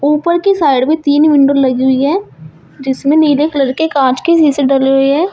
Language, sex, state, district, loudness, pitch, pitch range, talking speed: Hindi, female, Uttar Pradesh, Shamli, -11 LUFS, 280 Hz, 270-310 Hz, 215 wpm